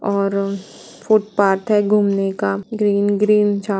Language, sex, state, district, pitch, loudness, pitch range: Hindi, female, Bihar, Saran, 200 Hz, -17 LUFS, 195-210 Hz